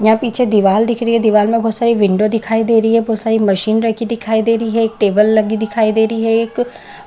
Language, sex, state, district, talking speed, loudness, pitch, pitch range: Hindi, female, Bihar, Madhepura, 280 wpm, -14 LUFS, 225 Hz, 215-230 Hz